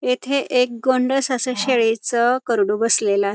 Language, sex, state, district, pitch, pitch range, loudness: Marathi, female, Maharashtra, Pune, 250 Hz, 225-255 Hz, -19 LUFS